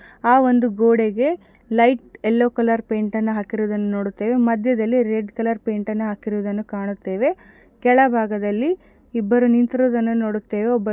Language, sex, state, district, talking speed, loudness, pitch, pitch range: Kannada, female, Karnataka, Gulbarga, 120 wpm, -20 LUFS, 230 Hz, 215-245 Hz